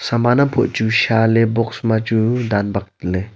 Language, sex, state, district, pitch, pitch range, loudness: Wancho, male, Arunachal Pradesh, Longding, 115 Hz, 110-120 Hz, -17 LUFS